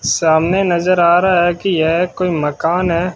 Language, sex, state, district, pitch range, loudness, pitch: Hindi, male, Rajasthan, Bikaner, 165-180 Hz, -14 LUFS, 175 Hz